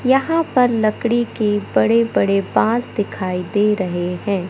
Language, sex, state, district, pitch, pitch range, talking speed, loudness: Hindi, male, Madhya Pradesh, Katni, 205 Hz, 175-235 Hz, 145 wpm, -18 LUFS